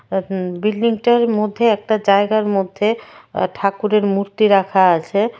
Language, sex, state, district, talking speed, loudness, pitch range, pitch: Bengali, female, Tripura, West Tripura, 110 wpm, -17 LUFS, 195-215 Hz, 210 Hz